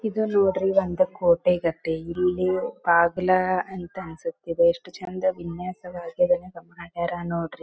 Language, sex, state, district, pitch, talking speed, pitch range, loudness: Kannada, female, Karnataka, Dharwad, 180 Hz, 135 wpm, 170-185 Hz, -24 LUFS